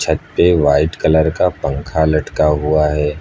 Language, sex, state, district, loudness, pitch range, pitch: Hindi, male, Uttar Pradesh, Lucknow, -15 LUFS, 75-80 Hz, 75 Hz